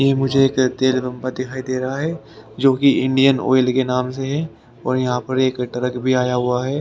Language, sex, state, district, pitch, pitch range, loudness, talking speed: Hindi, male, Haryana, Rohtak, 130 Hz, 125-135 Hz, -19 LUFS, 220 wpm